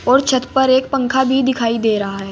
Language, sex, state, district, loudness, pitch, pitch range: Hindi, female, Uttar Pradesh, Saharanpur, -16 LUFS, 260 Hz, 230-265 Hz